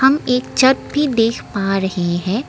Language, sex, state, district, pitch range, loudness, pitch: Hindi, female, Assam, Kamrup Metropolitan, 195-265 Hz, -17 LUFS, 235 Hz